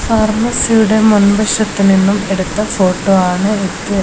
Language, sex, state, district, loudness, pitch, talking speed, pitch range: Malayalam, female, Kerala, Kozhikode, -12 LUFS, 205 Hz, 105 wpm, 195-215 Hz